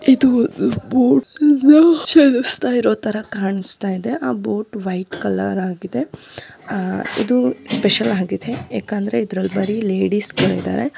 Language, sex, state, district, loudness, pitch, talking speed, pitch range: Kannada, female, Karnataka, Dharwad, -17 LUFS, 215 Hz, 110 wpm, 195-250 Hz